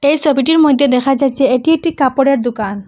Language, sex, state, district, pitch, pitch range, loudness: Bengali, female, Assam, Hailakandi, 275 Hz, 260-290 Hz, -13 LUFS